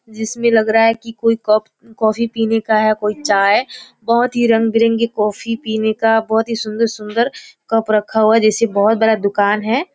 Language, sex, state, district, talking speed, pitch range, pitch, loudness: Hindi, female, Bihar, Kishanganj, 200 wpm, 215-230 Hz, 225 Hz, -16 LUFS